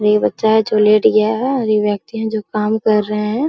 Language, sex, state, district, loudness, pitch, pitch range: Hindi, female, Bihar, Araria, -15 LUFS, 215 Hz, 210-220 Hz